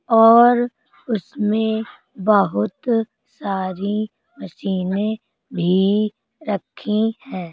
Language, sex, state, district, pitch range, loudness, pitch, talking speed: Hindi, female, Uttar Pradesh, Jalaun, 195-225 Hz, -19 LUFS, 215 Hz, 65 wpm